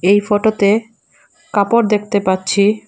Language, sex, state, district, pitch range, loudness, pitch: Bengali, female, Assam, Hailakandi, 200-215 Hz, -15 LUFS, 205 Hz